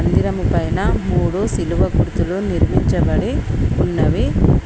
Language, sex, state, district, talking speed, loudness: Telugu, female, Telangana, Komaram Bheem, 90 wpm, -18 LUFS